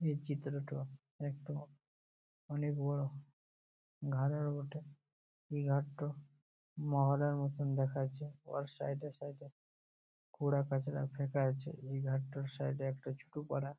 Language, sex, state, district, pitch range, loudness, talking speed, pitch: Bengali, male, West Bengal, Jalpaiguri, 135-145 Hz, -39 LUFS, 120 wpm, 140 Hz